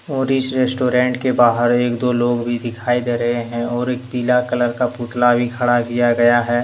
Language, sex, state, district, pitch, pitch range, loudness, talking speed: Hindi, male, Jharkhand, Deoghar, 120 Hz, 120-125 Hz, -17 LUFS, 215 wpm